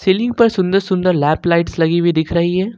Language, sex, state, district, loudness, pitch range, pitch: Hindi, male, Jharkhand, Ranchi, -15 LUFS, 170-195 Hz, 180 Hz